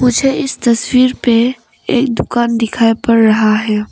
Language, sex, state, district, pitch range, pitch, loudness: Hindi, female, Arunachal Pradesh, Papum Pare, 225-255 Hz, 235 Hz, -13 LUFS